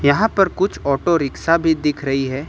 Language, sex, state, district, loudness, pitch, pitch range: Hindi, male, Uttar Pradesh, Lucknow, -18 LUFS, 150 Hz, 140-170 Hz